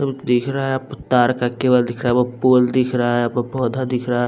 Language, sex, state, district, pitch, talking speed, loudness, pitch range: Hindi, male, Bihar, West Champaran, 125 Hz, 265 wpm, -18 LUFS, 120-130 Hz